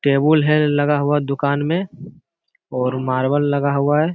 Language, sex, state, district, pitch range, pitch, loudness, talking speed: Hindi, male, Bihar, Jamui, 140-150 Hz, 145 Hz, -18 LUFS, 175 wpm